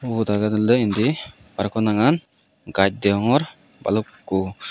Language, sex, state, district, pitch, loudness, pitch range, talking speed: Chakma, male, Tripura, West Tripura, 105 Hz, -21 LUFS, 100-120 Hz, 115 wpm